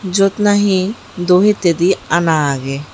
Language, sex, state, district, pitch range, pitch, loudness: Chakma, female, Tripura, Unakoti, 160-195 Hz, 185 Hz, -14 LUFS